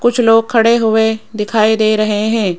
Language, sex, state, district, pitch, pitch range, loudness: Hindi, female, Rajasthan, Jaipur, 220 Hz, 215-225 Hz, -13 LUFS